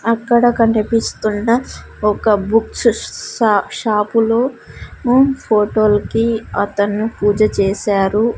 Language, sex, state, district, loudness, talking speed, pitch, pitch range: Telugu, female, Andhra Pradesh, Sri Satya Sai, -16 LUFS, 70 wpm, 220 Hz, 210-230 Hz